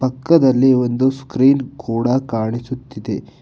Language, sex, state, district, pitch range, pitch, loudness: Kannada, male, Karnataka, Bangalore, 120-135 Hz, 130 Hz, -17 LUFS